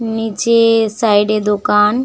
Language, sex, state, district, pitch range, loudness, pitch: Bengali, female, West Bengal, Malda, 210-230 Hz, -14 LUFS, 220 Hz